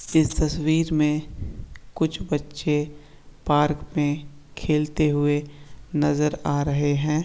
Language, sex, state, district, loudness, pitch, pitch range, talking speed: Hindi, male, Bihar, East Champaran, -24 LUFS, 150 Hz, 145-155 Hz, 110 wpm